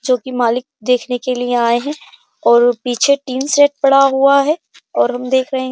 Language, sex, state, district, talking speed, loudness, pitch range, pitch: Hindi, female, Uttar Pradesh, Jyotiba Phule Nagar, 200 wpm, -15 LUFS, 245-275 Hz, 255 Hz